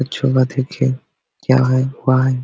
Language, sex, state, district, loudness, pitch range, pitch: Hindi, male, Jharkhand, Sahebganj, -17 LUFS, 130-135 Hz, 130 Hz